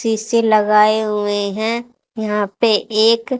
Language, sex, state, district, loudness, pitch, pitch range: Hindi, female, Haryana, Charkhi Dadri, -16 LUFS, 220 Hz, 210-230 Hz